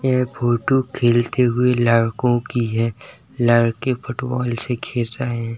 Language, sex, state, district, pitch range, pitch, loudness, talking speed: Hindi, male, Uttar Pradesh, Hamirpur, 120-125 Hz, 120 Hz, -19 LUFS, 160 wpm